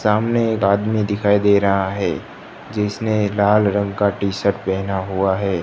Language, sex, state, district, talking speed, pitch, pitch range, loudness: Hindi, male, Gujarat, Gandhinagar, 170 wpm, 100 Hz, 100-105 Hz, -18 LUFS